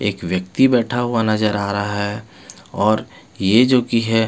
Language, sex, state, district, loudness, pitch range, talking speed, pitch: Hindi, male, Bihar, Patna, -18 LUFS, 100-115 Hz, 180 wpm, 110 Hz